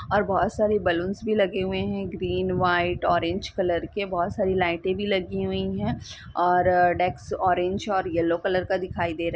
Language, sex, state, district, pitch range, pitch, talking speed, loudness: Hindi, female, Bihar, East Champaran, 175-195 Hz, 185 Hz, 190 wpm, -25 LUFS